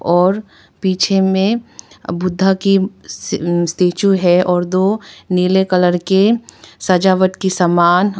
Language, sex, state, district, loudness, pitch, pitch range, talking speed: Hindi, female, Arunachal Pradesh, Papum Pare, -15 LUFS, 185 Hz, 180-195 Hz, 110 wpm